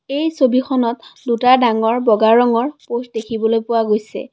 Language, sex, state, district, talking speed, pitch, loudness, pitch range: Assamese, female, Assam, Kamrup Metropolitan, 140 wpm, 235 Hz, -16 LUFS, 225-255 Hz